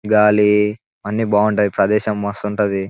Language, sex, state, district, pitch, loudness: Telugu, male, Telangana, Nalgonda, 105 Hz, -17 LUFS